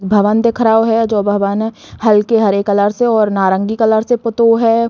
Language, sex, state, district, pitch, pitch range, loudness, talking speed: Bundeli, female, Uttar Pradesh, Hamirpur, 220 Hz, 205-230 Hz, -13 LUFS, 195 wpm